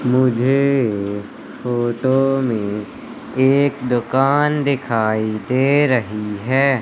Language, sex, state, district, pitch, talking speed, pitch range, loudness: Hindi, male, Madhya Pradesh, Katni, 130 Hz, 90 wpm, 110-135 Hz, -18 LUFS